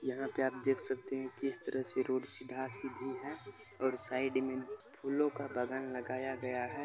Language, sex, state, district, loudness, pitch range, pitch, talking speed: Maithili, male, Bihar, Supaul, -37 LUFS, 130-135 Hz, 130 Hz, 195 wpm